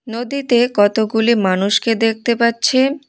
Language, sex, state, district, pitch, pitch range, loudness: Bengali, female, West Bengal, Cooch Behar, 235 Hz, 220-245 Hz, -16 LUFS